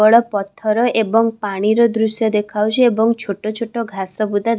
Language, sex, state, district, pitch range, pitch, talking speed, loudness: Odia, female, Odisha, Khordha, 210-230 Hz, 220 Hz, 145 wpm, -17 LUFS